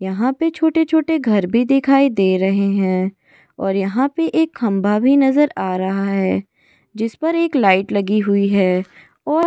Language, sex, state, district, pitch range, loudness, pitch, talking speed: Hindi, female, Goa, North and South Goa, 195-285 Hz, -17 LUFS, 210 Hz, 160 wpm